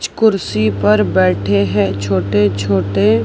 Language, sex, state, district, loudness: Hindi, female, Maharashtra, Mumbai Suburban, -15 LUFS